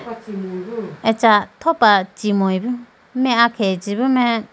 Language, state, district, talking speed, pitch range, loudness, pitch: Idu Mishmi, Arunachal Pradesh, Lower Dibang Valley, 120 wpm, 200-240 Hz, -18 LUFS, 225 Hz